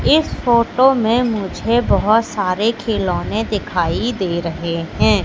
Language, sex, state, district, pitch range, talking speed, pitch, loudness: Hindi, female, Madhya Pradesh, Katni, 185-235 Hz, 125 wpm, 220 Hz, -17 LUFS